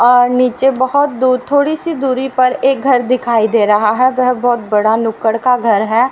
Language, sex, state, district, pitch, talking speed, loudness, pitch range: Hindi, female, Haryana, Rohtak, 250 Hz, 205 wpm, -13 LUFS, 230-260 Hz